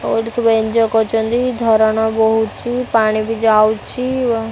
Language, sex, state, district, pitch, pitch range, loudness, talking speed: Odia, female, Odisha, Khordha, 225 Hz, 220-235 Hz, -15 LUFS, 135 wpm